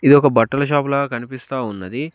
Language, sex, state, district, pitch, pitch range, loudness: Telugu, male, Telangana, Komaram Bheem, 135 Hz, 120-145 Hz, -18 LUFS